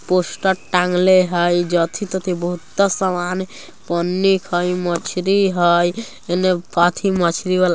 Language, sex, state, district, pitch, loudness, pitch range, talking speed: Bajjika, female, Bihar, Vaishali, 180 Hz, -18 LUFS, 175-190 Hz, 110 wpm